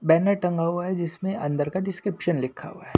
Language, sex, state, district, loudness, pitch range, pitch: Hindi, male, Delhi, New Delhi, -26 LUFS, 160-190 Hz, 175 Hz